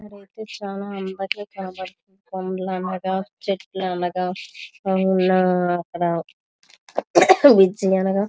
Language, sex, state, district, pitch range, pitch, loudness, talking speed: Telugu, female, Andhra Pradesh, Visakhapatnam, 185-195 Hz, 190 Hz, -21 LUFS, 80 wpm